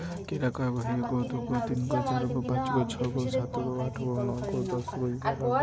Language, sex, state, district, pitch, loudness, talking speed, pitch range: Maithili, male, Bihar, Muzaffarpur, 125 Hz, -30 LUFS, 115 wpm, 125-130 Hz